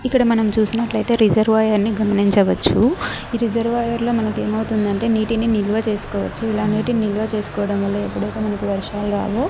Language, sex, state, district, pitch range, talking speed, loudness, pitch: Telugu, female, Andhra Pradesh, Annamaya, 205-230 Hz, 140 wpm, -19 LUFS, 215 Hz